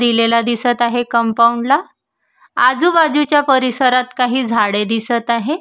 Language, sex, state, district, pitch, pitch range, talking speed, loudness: Marathi, female, Maharashtra, Solapur, 245 Hz, 235-265 Hz, 120 wpm, -14 LUFS